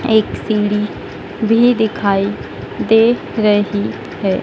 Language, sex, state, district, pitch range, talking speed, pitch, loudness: Hindi, female, Madhya Pradesh, Dhar, 205-225 Hz, 95 wpm, 215 Hz, -16 LUFS